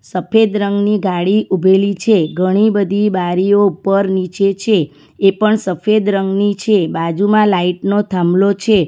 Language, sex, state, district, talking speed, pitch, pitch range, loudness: Gujarati, female, Gujarat, Valsad, 150 wpm, 195 Hz, 185-205 Hz, -14 LUFS